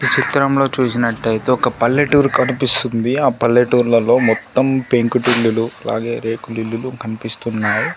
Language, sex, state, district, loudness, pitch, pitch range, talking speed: Telugu, male, Telangana, Komaram Bheem, -16 LUFS, 120 Hz, 115-130 Hz, 90 wpm